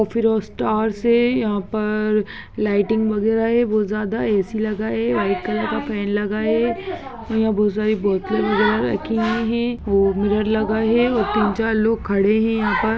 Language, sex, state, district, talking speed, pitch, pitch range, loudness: Hindi, female, Bihar, Gaya, 185 wpm, 215 Hz, 210-225 Hz, -20 LUFS